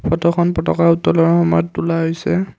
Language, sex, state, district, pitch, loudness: Assamese, male, Assam, Kamrup Metropolitan, 125 Hz, -16 LUFS